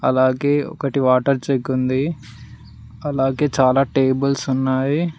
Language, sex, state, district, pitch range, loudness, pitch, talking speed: Telugu, male, Telangana, Mahabubabad, 130-140 Hz, -19 LUFS, 135 Hz, 105 wpm